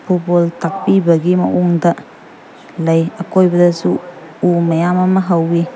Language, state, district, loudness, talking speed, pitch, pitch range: Manipuri, Manipur, Imphal West, -14 LUFS, 95 wpm, 175 Hz, 170-180 Hz